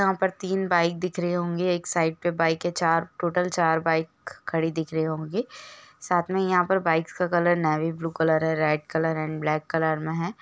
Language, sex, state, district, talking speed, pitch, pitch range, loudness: Hindi, female, Jharkhand, Jamtara, 220 wpm, 165 Hz, 160-180 Hz, -25 LUFS